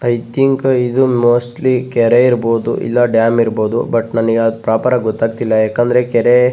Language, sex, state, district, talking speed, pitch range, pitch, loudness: Kannada, male, Karnataka, Bellary, 155 wpm, 115-125 Hz, 120 Hz, -14 LUFS